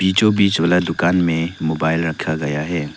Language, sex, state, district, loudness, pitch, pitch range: Hindi, male, Arunachal Pradesh, Lower Dibang Valley, -18 LUFS, 85 Hz, 80-90 Hz